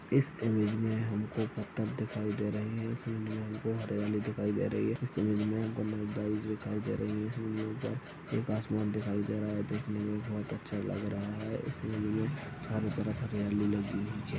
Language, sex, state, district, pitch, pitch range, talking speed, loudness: Hindi, male, Chhattisgarh, Sarguja, 105 Hz, 105-110 Hz, 210 wpm, -35 LUFS